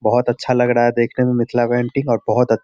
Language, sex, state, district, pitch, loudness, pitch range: Hindi, male, Bihar, Sitamarhi, 120 Hz, -17 LUFS, 120-125 Hz